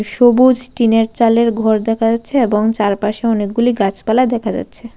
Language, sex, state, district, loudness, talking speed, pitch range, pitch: Bengali, female, Tripura, West Tripura, -14 LUFS, 145 wpm, 215-240 Hz, 225 Hz